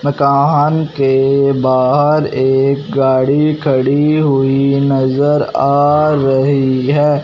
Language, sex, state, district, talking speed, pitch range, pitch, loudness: Hindi, male, Punjab, Fazilka, 90 wpm, 135-145 Hz, 140 Hz, -12 LUFS